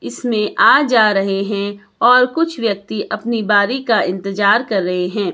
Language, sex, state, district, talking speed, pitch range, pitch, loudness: Hindi, male, Himachal Pradesh, Shimla, 170 wpm, 195-235 Hz, 210 Hz, -15 LUFS